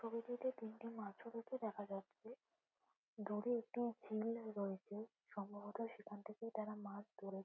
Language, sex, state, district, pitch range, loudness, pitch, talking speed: Bengali, female, West Bengal, Jhargram, 205-230 Hz, -48 LUFS, 215 Hz, 130 wpm